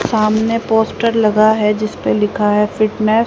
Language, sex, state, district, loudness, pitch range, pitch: Hindi, female, Haryana, Rohtak, -15 LUFS, 210-220 Hz, 215 Hz